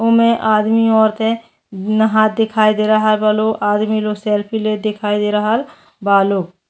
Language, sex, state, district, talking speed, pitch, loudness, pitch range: Bhojpuri, female, Uttar Pradesh, Deoria, 160 wpm, 215 Hz, -15 LUFS, 210-220 Hz